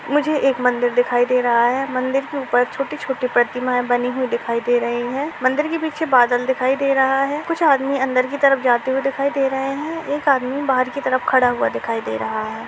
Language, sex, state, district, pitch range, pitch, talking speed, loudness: Hindi, female, Uttar Pradesh, Etah, 245-275 Hz, 260 Hz, 230 wpm, -19 LUFS